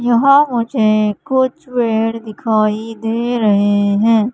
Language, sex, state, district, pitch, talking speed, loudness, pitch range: Hindi, female, Madhya Pradesh, Katni, 225 Hz, 110 wpm, -15 LUFS, 215-245 Hz